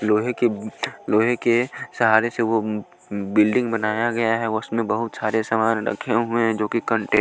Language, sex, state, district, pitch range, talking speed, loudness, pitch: Hindi, male, Punjab, Pathankot, 110-115 Hz, 235 wpm, -22 LUFS, 115 Hz